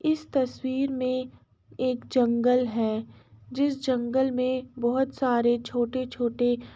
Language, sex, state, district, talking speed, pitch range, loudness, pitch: Hindi, female, Uttar Pradesh, Jalaun, 135 wpm, 240-260 Hz, -26 LUFS, 255 Hz